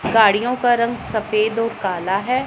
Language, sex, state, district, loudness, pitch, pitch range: Hindi, female, Punjab, Pathankot, -19 LUFS, 225 Hz, 210-240 Hz